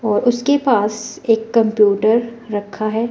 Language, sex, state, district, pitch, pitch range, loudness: Hindi, female, Himachal Pradesh, Shimla, 225 Hz, 215-235 Hz, -17 LUFS